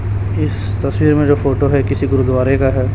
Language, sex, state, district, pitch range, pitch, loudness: Hindi, male, Chhattisgarh, Raipur, 100-135 Hz, 130 Hz, -15 LUFS